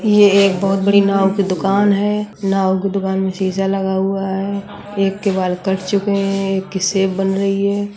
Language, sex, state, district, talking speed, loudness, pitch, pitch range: Hindi, male, Uttar Pradesh, Budaun, 210 wpm, -17 LUFS, 195 Hz, 190-200 Hz